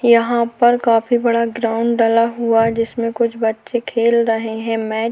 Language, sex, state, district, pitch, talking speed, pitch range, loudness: Hindi, female, Uttarakhand, Tehri Garhwal, 230 Hz, 190 wpm, 225-235 Hz, -17 LUFS